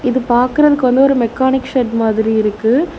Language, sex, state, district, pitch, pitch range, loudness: Tamil, female, Tamil Nadu, Nilgiris, 255 Hz, 230-265 Hz, -14 LUFS